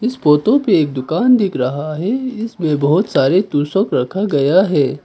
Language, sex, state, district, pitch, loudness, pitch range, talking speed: Hindi, male, Arunachal Pradesh, Papum Pare, 165 Hz, -15 LUFS, 145-215 Hz, 165 wpm